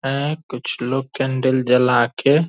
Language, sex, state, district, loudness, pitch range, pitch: Angika, male, Bihar, Purnia, -19 LUFS, 125-140 Hz, 135 Hz